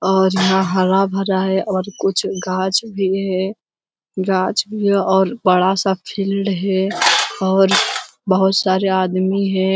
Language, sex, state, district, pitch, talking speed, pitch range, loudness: Hindi, male, Bihar, Jamui, 190 Hz, 135 wpm, 190-195 Hz, -17 LUFS